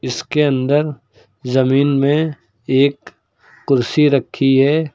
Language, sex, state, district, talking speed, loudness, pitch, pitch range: Hindi, male, Uttar Pradesh, Lucknow, 95 wpm, -16 LUFS, 140 Hz, 130-145 Hz